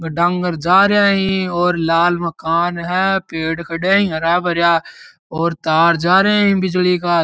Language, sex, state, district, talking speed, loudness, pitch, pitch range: Marwari, male, Rajasthan, Churu, 185 wpm, -15 LUFS, 175 Hz, 170-190 Hz